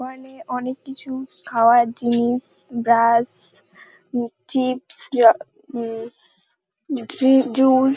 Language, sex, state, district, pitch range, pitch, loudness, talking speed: Bengali, female, West Bengal, Paschim Medinipur, 230-265 Hz, 250 Hz, -20 LUFS, 75 wpm